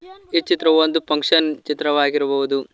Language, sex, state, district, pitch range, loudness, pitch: Kannada, male, Karnataka, Koppal, 145-165 Hz, -18 LUFS, 155 Hz